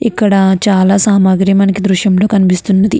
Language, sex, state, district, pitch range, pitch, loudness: Telugu, female, Andhra Pradesh, Chittoor, 190-205 Hz, 195 Hz, -10 LUFS